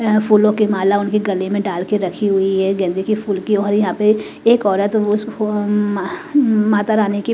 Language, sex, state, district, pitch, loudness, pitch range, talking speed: Hindi, female, Bihar, West Champaran, 210 Hz, -16 LUFS, 200-215 Hz, 235 wpm